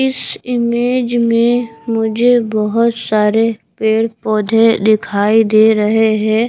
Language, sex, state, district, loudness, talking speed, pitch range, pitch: Hindi, female, Bihar, Katihar, -14 LUFS, 110 wpm, 215-235 Hz, 225 Hz